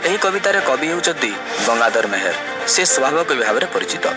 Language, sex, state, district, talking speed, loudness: Odia, male, Odisha, Malkangiri, 160 wpm, -17 LUFS